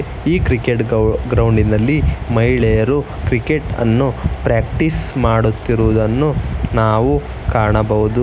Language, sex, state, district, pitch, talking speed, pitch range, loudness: Kannada, male, Karnataka, Bangalore, 115 Hz, 80 wpm, 110-125 Hz, -16 LUFS